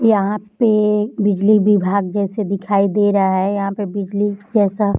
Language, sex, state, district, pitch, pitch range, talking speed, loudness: Hindi, female, Bihar, Darbhanga, 205 Hz, 200-210 Hz, 170 wpm, -17 LUFS